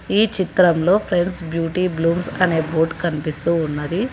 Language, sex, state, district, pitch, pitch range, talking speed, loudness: Telugu, female, Telangana, Hyderabad, 170 Hz, 160-185 Hz, 130 wpm, -19 LUFS